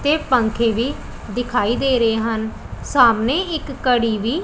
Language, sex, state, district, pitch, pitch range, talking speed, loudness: Punjabi, female, Punjab, Pathankot, 245 Hz, 225-275 Hz, 150 wpm, -19 LUFS